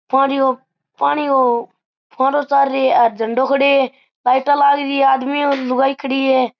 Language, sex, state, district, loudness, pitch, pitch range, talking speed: Marwari, male, Rajasthan, Churu, -16 LUFS, 270 Hz, 260-275 Hz, 165 wpm